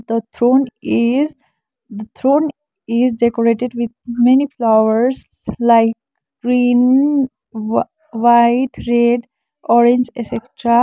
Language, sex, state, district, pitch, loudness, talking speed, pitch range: English, female, Sikkim, Gangtok, 240 Hz, -15 LUFS, 95 wpm, 230-260 Hz